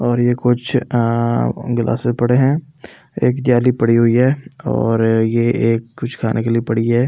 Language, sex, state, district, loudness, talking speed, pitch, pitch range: Hindi, male, Delhi, New Delhi, -16 LUFS, 180 wpm, 120 Hz, 115-125 Hz